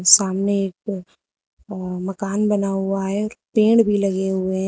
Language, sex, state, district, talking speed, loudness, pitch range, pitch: Hindi, female, Uttar Pradesh, Lucknow, 140 wpm, -20 LUFS, 190-205 Hz, 195 Hz